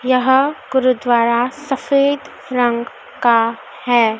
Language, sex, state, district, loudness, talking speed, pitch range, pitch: Hindi, female, Madhya Pradesh, Dhar, -16 LUFS, 85 wpm, 235-265 Hz, 250 Hz